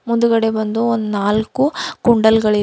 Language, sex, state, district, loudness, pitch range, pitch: Kannada, female, Karnataka, Bidar, -16 LUFS, 215-235 Hz, 225 Hz